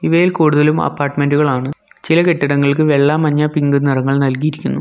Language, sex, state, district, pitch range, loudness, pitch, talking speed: Malayalam, male, Kerala, Kollam, 140-155 Hz, -14 LUFS, 145 Hz, 135 wpm